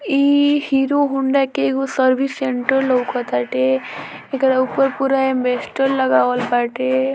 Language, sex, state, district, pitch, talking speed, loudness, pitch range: Bhojpuri, female, Bihar, Muzaffarpur, 265 Hz, 115 wpm, -18 LUFS, 250-270 Hz